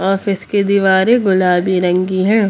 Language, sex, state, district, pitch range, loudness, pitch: Hindi, male, Bihar, Gaya, 185-200 Hz, -14 LUFS, 190 Hz